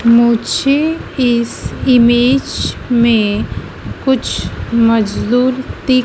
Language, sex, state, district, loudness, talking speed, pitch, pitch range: Hindi, female, Madhya Pradesh, Dhar, -14 LUFS, 70 wpm, 240 Hz, 235-260 Hz